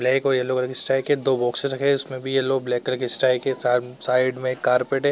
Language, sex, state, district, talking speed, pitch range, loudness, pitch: Hindi, male, Uttar Pradesh, Muzaffarnagar, 295 wpm, 125-135 Hz, -20 LUFS, 130 Hz